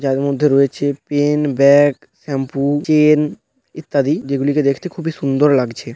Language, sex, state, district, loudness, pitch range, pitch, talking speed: Bengali, male, West Bengal, Dakshin Dinajpur, -16 LUFS, 140-150 Hz, 145 Hz, 140 wpm